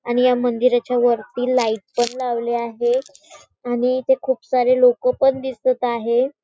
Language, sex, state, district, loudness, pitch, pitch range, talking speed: Marathi, female, Maharashtra, Chandrapur, -19 LUFS, 250 Hz, 240-255 Hz, 150 wpm